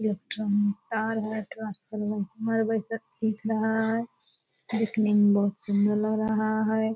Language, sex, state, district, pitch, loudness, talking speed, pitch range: Hindi, female, Bihar, Purnia, 220 Hz, -27 LUFS, 110 wpm, 210-220 Hz